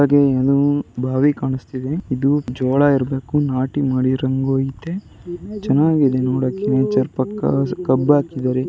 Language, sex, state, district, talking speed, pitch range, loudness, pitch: Kannada, male, Karnataka, Shimoga, 110 wpm, 130-145 Hz, -18 LUFS, 135 Hz